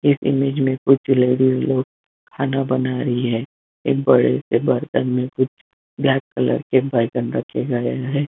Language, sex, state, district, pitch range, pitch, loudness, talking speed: Hindi, male, Bihar, Jamui, 125-135 Hz, 130 Hz, -19 LUFS, 165 wpm